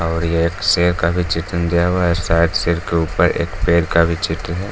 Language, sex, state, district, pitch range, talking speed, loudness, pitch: Hindi, male, Bihar, Gaya, 85-90 Hz, 255 wpm, -17 LUFS, 85 Hz